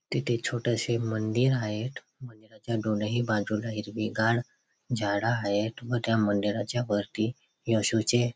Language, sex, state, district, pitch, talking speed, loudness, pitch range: Marathi, male, Maharashtra, Chandrapur, 115 Hz, 110 wpm, -28 LUFS, 110-120 Hz